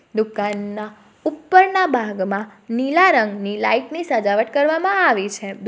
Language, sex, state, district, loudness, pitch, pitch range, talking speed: Gujarati, female, Gujarat, Valsad, -18 LUFS, 225 Hz, 205-320 Hz, 135 wpm